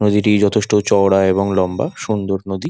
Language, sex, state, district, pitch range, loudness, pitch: Bengali, male, West Bengal, Dakshin Dinajpur, 95-105 Hz, -16 LUFS, 100 Hz